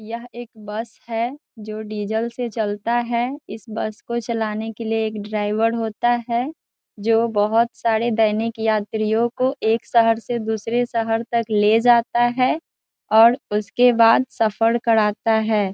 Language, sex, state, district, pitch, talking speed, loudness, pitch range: Hindi, female, Bihar, Saran, 225 Hz, 150 wpm, -20 LUFS, 220-235 Hz